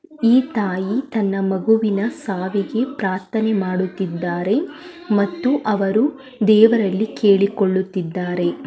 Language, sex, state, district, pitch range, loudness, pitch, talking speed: Kannada, female, Karnataka, Mysore, 190-230 Hz, -19 LUFS, 205 Hz, 75 wpm